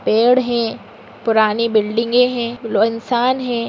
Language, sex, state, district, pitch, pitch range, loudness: Hindi, female, Uttar Pradesh, Gorakhpur, 235 Hz, 225-245 Hz, -17 LUFS